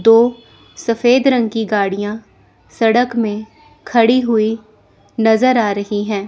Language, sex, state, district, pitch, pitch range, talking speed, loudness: Hindi, female, Chandigarh, Chandigarh, 225 Hz, 210-240 Hz, 125 wpm, -15 LUFS